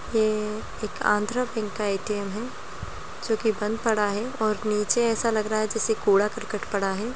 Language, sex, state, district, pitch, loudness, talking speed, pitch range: Hindi, female, Bihar, Jahanabad, 215 Hz, -26 LUFS, 195 wpm, 210-225 Hz